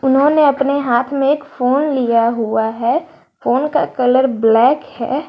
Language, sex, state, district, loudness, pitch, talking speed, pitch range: Hindi, female, Jharkhand, Garhwa, -15 LUFS, 265 Hz, 160 wpm, 240-285 Hz